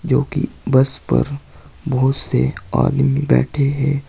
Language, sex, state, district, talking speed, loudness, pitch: Hindi, male, Uttar Pradesh, Saharanpur, 130 wpm, -18 LUFS, 130 Hz